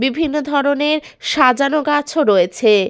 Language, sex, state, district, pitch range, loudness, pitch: Bengali, female, West Bengal, Paschim Medinipur, 250-300 Hz, -16 LUFS, 285 Hz